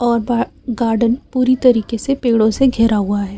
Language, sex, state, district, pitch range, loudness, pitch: Hindi, female, Chhattisgarh, Raipur, 225-250 Hz, -16 LUFS, 235 Hz